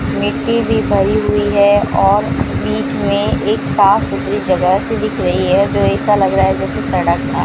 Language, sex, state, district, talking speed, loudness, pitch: Hindi, female, Rajasthan, Bikaner, 195 wpm, -14 LUFS, 200 Hz